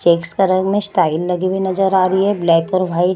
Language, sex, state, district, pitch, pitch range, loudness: Hindi, female, Bihar, Samastipur, 185 Hz, 175-195 Hz, -16 LUFS